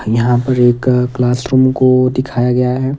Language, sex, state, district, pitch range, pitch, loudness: Hindi, male, Himachal Pradesh, Shimla, 125-130 Hz, 125 Hz, -13 LUFS